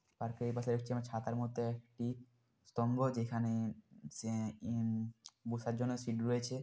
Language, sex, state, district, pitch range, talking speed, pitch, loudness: Bengali, male, West Bengal, Dakshin Dinajpur, 115-120 Hz, 145 wpm, 120 Hz, -39 LUFS